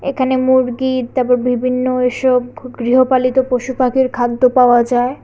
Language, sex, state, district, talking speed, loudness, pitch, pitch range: Bengali, female, Tripura, West Tripura, 125 wpm, -14 LUFS, 255 Hz, 250-260 Hz